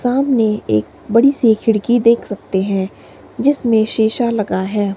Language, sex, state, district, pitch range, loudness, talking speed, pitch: Hindi, female, Himachal Pradesh, Shimla, 205-240 Hz, -16 LUFS, 145 wpm, 220 Hz